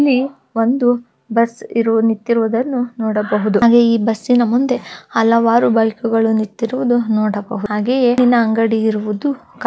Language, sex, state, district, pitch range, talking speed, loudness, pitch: Kannada, female, Karnataka, Bellary, 220-245 Hz, 125 wpm, -16 LUFS, 230 Hz